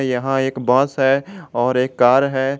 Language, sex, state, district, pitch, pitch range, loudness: Hindi, male, Jharkhand, Garhwa, 130 Hz, 125-135 Hz, -17 LUFS